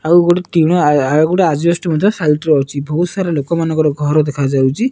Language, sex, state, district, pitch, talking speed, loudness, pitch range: Odia, male, Odisha, Nuapada, 160 Hz, 220 wpm, -14 LUFS, 150-175 Hz